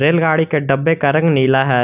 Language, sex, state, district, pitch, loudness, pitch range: Hindi, male, Jharkhand, Garhwa, 150 Hz, -15 LUFS, 135-160 Hz